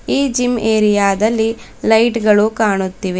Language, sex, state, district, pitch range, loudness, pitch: Kannada, female, Karnataka, Bidar, 205-230 Hz, -15 LUFS, 220 Hz